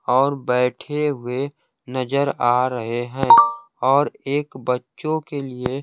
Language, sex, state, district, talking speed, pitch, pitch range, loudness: Hindi, male, Bihar, Kaimur, 125 wpm, 135 Hz, 125-145 Hz, -20 LUFS